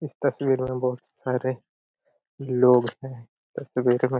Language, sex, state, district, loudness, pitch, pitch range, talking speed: Hindi, male, Chhattisgarh, Korba, -24 LUFS, 125 Hz, 125-130 Hz, 130 wpm